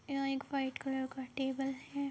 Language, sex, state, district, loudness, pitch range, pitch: Hindi, female, Uttar Pradesh, Ghazipur, -38 LUFS, 265-275 Hz, 270 Hz